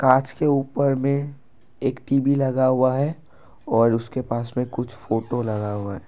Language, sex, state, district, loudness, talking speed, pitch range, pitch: Hindi, male, Assam, Kamrup Metropolitan, -22 LUFS, 180 wpm, 115-135 Hz, 130 Hz